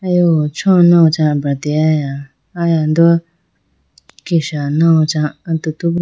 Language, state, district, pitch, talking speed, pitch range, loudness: Idu Mishmi, Arunachal Pradesh, Lower Dibang Valley, 160 Hz, 100 wpm, 150-170 Hz, -14 LUFS